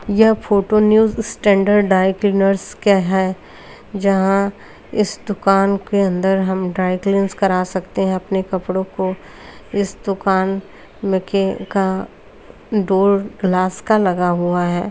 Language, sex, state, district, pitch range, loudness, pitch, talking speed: Hindi, female, Bihar, Jahanabad, 190-200 Hz, -17 LUFS, 195 Hz, 125 wpm